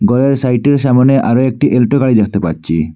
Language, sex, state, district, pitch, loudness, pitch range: Bengali, male, Assam, Hailakandi, 125 Hz, -12 LUFS, 105-135 Hz